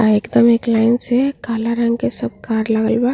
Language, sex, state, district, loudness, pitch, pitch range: Bhojpuri, female, Uttar Pradesh, Ghazipur, -17 LUFS, 235 Hz, 225-235 Hz